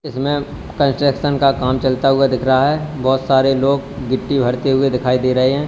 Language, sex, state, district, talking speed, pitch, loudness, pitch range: Hindi, male, Uttar Pradesh, Lalitpur, 200 wpm, 135 Hz, -16 LUFS, 130-140 Hz